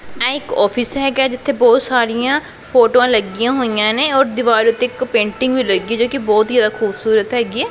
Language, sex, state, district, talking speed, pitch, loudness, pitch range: Punjabi, female, Punjab, Pathankot, 210 wpm, 245 Hz, -15 LUFS, 225-255 Hz